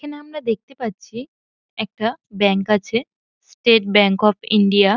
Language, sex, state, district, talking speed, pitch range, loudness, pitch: Bengali, female, West Bengal, Paschim Medinipur, 145 wpm, 205-235 Hz, -18 LUFS, 220 Hz